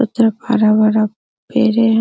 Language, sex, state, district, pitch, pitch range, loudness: Hindi, female, Bihar, Araria, 225 Hz, 215-230 Hz, -15 LUFS